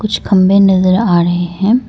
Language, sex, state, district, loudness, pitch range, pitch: Hindi, female, Arunachal Pradesh, Lower Dibang Valley, -11 LUFS, 180-205 Hz, 190 Hz